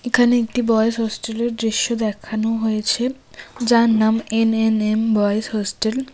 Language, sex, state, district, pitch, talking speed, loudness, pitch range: Bengali, female, West Bengal, Cooch Behar, 225 Hz, 125 wpm, -19 LUFS, 220-235 Hz